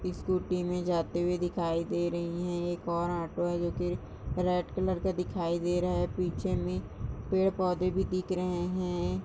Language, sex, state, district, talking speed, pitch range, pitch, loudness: Hindi, female, Chhattisgarh, Rajnandgaon, 190 wpm, 170-180 Hz, 175 Hz, -32 LUFS